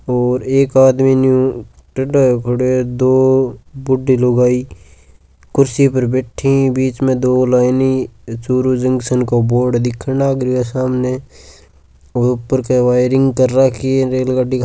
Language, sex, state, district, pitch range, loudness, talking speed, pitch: Marwari, male, Rajasthan, Churu, 125-130 Hz, -14 LUFS, 145 wpm, 130 Hz